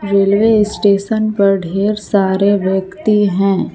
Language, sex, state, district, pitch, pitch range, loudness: Hindi, female, Jharkhand, Palamu, 200 Hz, 195-210 Hz, -14 LUFS